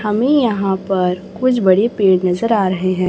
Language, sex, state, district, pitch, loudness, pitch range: Hindi, male, Chhattisgarh, Raipur, 195 Hz, -15 LUFS, 185-225 Hz